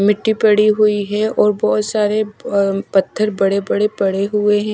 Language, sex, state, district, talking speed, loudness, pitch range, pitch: Hindi, female, Odisha, Malkangiri, 175 wpm, -16 LUFS, 200-215 Hz, 210 Hz